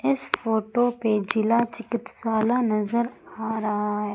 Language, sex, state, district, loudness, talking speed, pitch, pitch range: Hindi, female, Madhya Pradesh, Umaria, -25 LUFS, 130 wpm, 220 Hz, 210-235 Hz